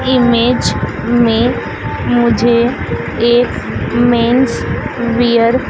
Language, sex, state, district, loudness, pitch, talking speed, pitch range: Hindi, female, Madhya Pradesh, Dhar, -13 LUFS, 240 Hz, 75 wpm, 235-245 Hz